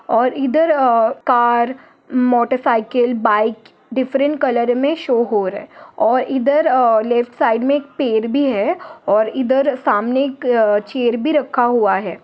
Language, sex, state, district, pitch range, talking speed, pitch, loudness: Hindi, female, Jharkhand, Sahebganj, 230-275 Hz, 140 wpm, 250 Hz, -16 LUFS